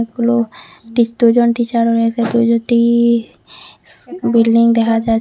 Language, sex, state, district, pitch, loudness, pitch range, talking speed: Bengali, female, Assam, Hailakandi, 230 Hz, -14 LUFS, 230-235 Hz, 105 wpm